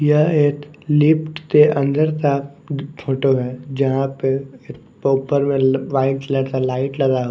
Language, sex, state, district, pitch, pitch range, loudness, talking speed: Hindi, male, Bihar, West Champaran, 140 Hz, 135-150 Hz, -18 LUFS, 140 wpm